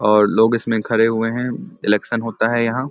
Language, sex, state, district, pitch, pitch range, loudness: Hindi, male, Bihar, Samastipur, 115 Hz, 110-120 Hz, -18 LUFS